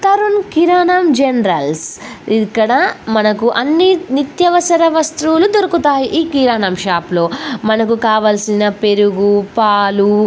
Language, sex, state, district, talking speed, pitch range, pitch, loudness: Telugu, female, Telangana, Karimnagar, 95 wpm, 205-330 Hz, 230 Hz, -13 LUFS